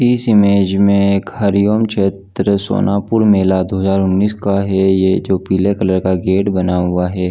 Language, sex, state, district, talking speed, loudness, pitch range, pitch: Hindi, male, Chhattisgarh, Bilaspur, 180 wpm, -14 LUFS, 95-100 Hz, 95 Hz